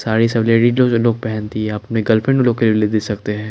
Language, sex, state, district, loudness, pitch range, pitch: Hindi, male, Bihar, Kaimur, -16 LUFS, 110-115 Hz, 110 Hz